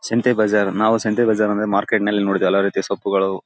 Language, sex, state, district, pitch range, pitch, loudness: Kannada, male, Karnataka, Bellary, 100-110 Hz, 105 Hz, -18 LUFS